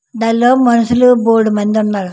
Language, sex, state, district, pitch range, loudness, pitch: Telugu, female, Andhra Pradesh, Srikakulam, 215-240 Hz, -12 LUFS, 230 Hz